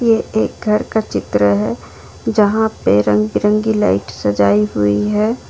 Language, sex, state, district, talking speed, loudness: Hindi, female, Jharkhand, Ranchi, 155 wpm, -16 LUFS